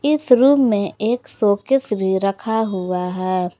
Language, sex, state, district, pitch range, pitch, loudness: Hindi, female, Jharkhand, Garhwa, 190-250 Hz, 210 Hz, -18 LUFS